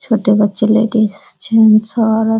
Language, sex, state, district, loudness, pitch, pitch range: Hindi, female, Uttar Pradesh, Deoria, -13 LUFS, 220 Hz, 215-225 Hz